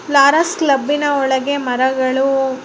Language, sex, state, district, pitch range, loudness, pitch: Kannada, female, Karnataka, Mysore, 265-290 Hz, -15 LUFS, 275 Hz